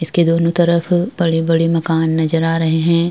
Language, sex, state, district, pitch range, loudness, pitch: Hindi, female, Bihar, Vaishali, 165-170 Hz, -15 LUFS, 165 Hz